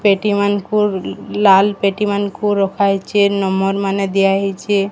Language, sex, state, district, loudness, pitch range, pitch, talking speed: Odia, female, Odisha, Sambalpur, -16 LUFS, 195-205 Hz, 200 Hz, 110 wpm